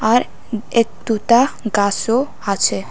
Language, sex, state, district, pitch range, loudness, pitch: Bengali, female, Tripura, West Tripura, 200-240 Hz, -17 LUFS, 225 Hz